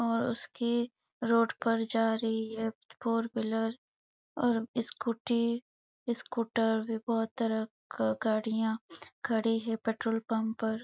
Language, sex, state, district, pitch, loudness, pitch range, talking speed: Hindi, female, Chhattisgarh, Bastar, 225 Hz, -32 LUFS, 225-235 Hz, 125 wpm